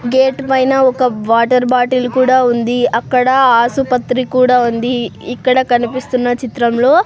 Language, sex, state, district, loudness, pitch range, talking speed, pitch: Telugu, male, Andhra Pradesh, Sri Satya Sai, -13 LUFS, 245-260 Hz, 125 wpm, 250 Hz